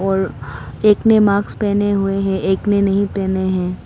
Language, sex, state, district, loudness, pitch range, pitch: Hindi, female, Arunachal Pradesh, Papum Pare, -17 LUFS, 190-205 Hz, 195 Hz